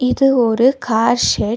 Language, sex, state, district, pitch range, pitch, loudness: Tamil, female, Tamil Nadu, Nilgiris, 225-255 Hz, 245 Hz, -15 LUFS